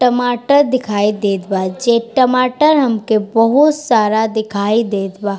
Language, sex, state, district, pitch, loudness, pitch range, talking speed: Bhojpuri, female, Bihar, East Champaran, 225 Hz, -14 LUFS, 205-255 Hz, 135 wpm